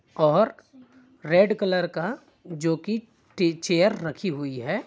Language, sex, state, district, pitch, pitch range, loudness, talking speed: Hindi, male, Chhattisgarh, Bilaspur, 185 Hz, 165-220 Hz, -24 LUFS, 110 wpm